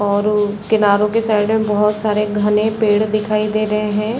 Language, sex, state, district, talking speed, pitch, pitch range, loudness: Hindi, female, Chhattisgarh, Bastar, 200 wpm, 210 Hz, 210-215 Hz, -16 LUFS